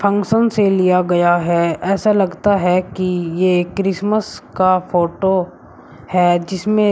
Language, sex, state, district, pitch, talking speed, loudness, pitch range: Hindi, male, Uttar Pradesh, Shamli, 185 Hz, 140 wpm, -16 LUFS, 175-200 Hz